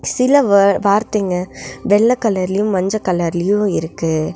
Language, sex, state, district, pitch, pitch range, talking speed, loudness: Tamil, female, Tamil Nadu, Nilgiris, 200 Hz, 180-210 Hz, 110 wpm, -16 LUFS